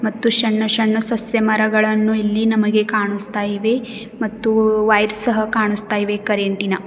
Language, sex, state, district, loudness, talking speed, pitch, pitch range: Kannada, female, Karnataka, Bidar, -17 LUFS, 140 wpm, 215 Hz, 210-225 Hz